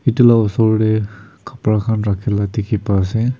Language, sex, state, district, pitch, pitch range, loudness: Nagamese, male, Nagaland, Kohima, 110 Hz, 105-115 Hz, -16 LUFS